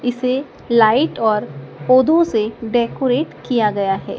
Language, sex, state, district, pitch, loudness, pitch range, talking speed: Hindi, female, Madhya Pradesh, Dhar, 240 Hz, -17 LUFS, 220-255 Hz, 130 wpm